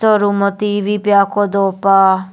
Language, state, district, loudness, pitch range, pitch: Nyishi, Arunachal Pradesh, Papum Pare, -14 LUFS, 195-205 Hz, 200 Hz